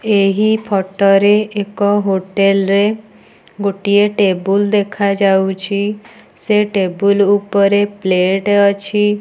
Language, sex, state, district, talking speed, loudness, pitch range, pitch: Odia, female, Odisha, Nuapada, 90 wpm, -14 LUFS, 195-205 Hz, 200 Hz